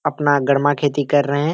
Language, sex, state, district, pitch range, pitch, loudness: Hindi, male, Bihar, Kishanganj, 140-145 Hz, 145 Hz, -17 LUFS